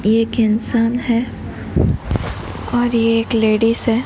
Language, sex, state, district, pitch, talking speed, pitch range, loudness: Hindi, female, Odisha, Nuapada, 230 Hz, 120 wpm, 225-235 Hz, -17 LUFS